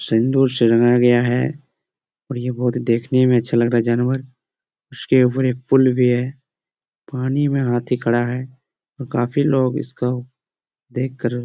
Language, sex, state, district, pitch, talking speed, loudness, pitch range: Hindi, male, Jharkhand, Jamtara, 125 Hz, 160 wpm, -18 LUFS, 120-130 Hz